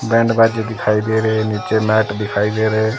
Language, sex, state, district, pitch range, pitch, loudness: Hindi, female, Himachal Pradesh, Shimla, 105-110 Hz, 110 Hz, -16 LUFS